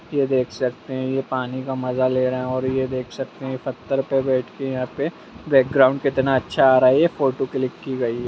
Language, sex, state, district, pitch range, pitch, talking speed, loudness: Hindi, male, Bihar, Purnia, 130-135 Hz, 130 Hz, 255 wpm, -21 LUFS